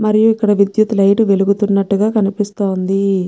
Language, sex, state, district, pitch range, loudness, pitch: Telugu, female, Telangana, Nalgonda, 195-215 Hz, -14 LUFS, 200 Hz